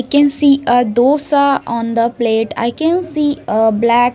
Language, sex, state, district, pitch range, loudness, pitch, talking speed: English, female, Haryana, Jhajjar, 235-285 Hz, -14 LUFS, 245 Hz, 200 wpm